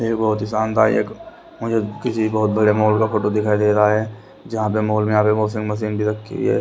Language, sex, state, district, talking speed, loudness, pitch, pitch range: Hindi, male, Haryana, Rohtak, 235 wpm, -19 LUFS, 110 Hz, 105-110 Hz